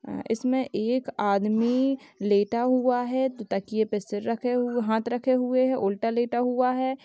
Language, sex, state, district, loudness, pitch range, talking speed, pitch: Hindi, female, Uttar Pradesh, Hamirpur, -26 LUFS, 220-255 Hz, 180 wpm, 245 Hz